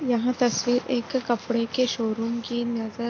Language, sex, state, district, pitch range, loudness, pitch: Hindi, female, Bihar, Gopalganj, 235-245 Hz, -25 LUFS, 240 Hz